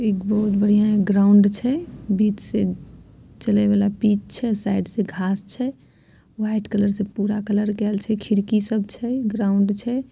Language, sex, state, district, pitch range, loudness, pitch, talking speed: Maithili, female, Bihar, Samastipur, 200-215 Hz, -21 LUFS, 210 Hz, 165 wpm